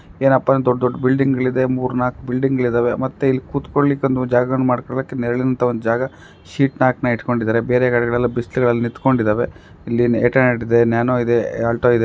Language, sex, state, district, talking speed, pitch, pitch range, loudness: Kannada, male, Karnataka, Raichur, 165 wpm, 125 Hz, 120-130 Hz, -18 LUFS